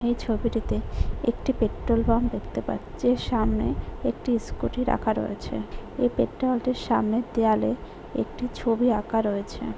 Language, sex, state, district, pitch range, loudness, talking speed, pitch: Bengali, female, West Bengal, Kolkata, 225-245 Hz, -26 LUFS, 135 wpm, 235 Hz